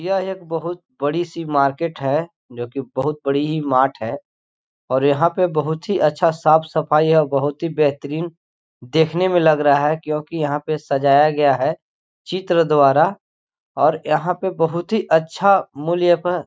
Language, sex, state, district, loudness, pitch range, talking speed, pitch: Hindi, male, Chhattisgarh, Korba, -18 LUFS, 145-170 Hz, 160 wpm, 155 Hz